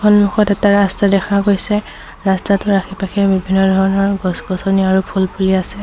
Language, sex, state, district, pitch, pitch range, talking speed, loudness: Assamese, female, Assam, Sonitpur, 195 Hz, 190-200 Hz, 145 wpm, -15 LUFS